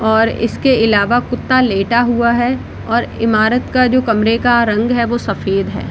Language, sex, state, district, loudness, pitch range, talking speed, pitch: Hindi, female, Bihar, Samastipur, -14 LUFS, 220-245 Hz, 185 wpm, 235 Hz